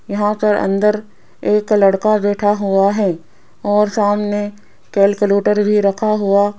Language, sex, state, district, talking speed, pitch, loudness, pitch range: Hindi, female, Rajasthan, Jaipur, 135 wpm, 205 Hz, -15 LUFS, 200-210 Hz